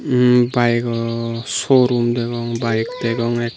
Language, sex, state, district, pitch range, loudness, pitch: Chakma, male, Tripura, Unakoti, 115-120 Hz, -18 LUFS, 120 Hz